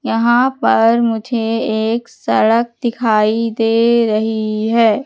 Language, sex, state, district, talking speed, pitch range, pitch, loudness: Hindi, female, Madhya Pradesh, Katni, 105 wpm, 220-235 Hz, 225 Hz, -15 LUFS